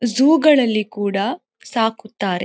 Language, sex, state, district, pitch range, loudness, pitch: Kannada, female, Karnataka, Dakshina Kannada, 205-260 Hz, -18 LUFS, 225 Hz